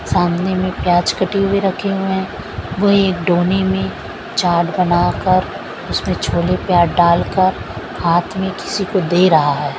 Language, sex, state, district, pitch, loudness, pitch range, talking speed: Hindi, female, Maharashtra, Mumbai Suburban, 180 Hz, -16 LUFS, 170-190 Hz, 155 wpm